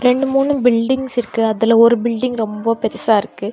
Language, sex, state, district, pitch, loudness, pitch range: Tamil, female, Tamil Nadu, Kanyakumari, 235 Hz, -16 LUFS, 225-250 Hz